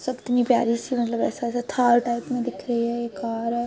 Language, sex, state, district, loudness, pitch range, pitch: Hindi, female, Uttar Pradesh, Etah, -24 LUFS, 235-245 Hz, 240 Hz